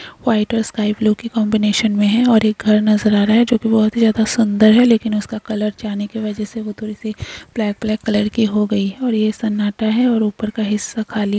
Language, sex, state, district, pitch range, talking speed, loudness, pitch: Hindi, female, Uttar Pradesh, Hamirpur, 210-225 Hz, 265 wpm, -17 LUFS, 215 Hz